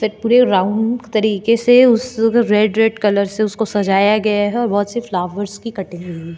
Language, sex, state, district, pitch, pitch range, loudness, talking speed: Hindi, female, Goa, North and South Goa, 215 Hz, 200-230 Hz, -15 LUFS, 190 wpm